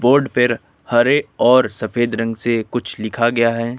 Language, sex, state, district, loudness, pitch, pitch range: Hindi, male, Uttar Pradesh, Lucknow, -17 LUFS, 120 Hz, 115-125 Hz